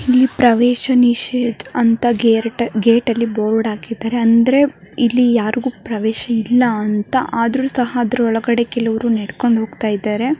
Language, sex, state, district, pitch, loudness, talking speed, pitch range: Kannada, female, Karnataka, Mysore, 235 Hz, -16 LUFS, 125 wpm, 225-245 Hz